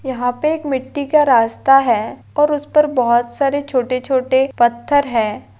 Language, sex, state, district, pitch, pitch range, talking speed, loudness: Hindi, female, Maharashtra, Pune, 265 Hz, 240-285 Hz, 170 wpm, -16 LUFS